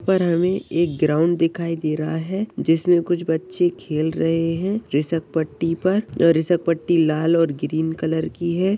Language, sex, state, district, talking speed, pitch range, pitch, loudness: Hindi, male, Uttar Pradesh, Deoria, 180 wpm, 160-175 Hz, 165 Hz, -21 LUFS